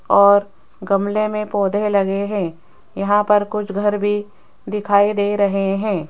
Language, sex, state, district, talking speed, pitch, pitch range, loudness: Hindi, female, Rajasthan, Jaipur, 150 wpm, 205 Hz, 200-210 Hz, -18 LUFS